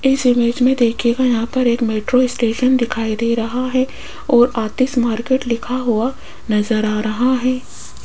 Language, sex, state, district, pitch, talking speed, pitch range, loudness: Hindi, female, Rajasthan, Jaipur, 240 Hz, 165 wpm, 230-255 Hz, -17 LUFS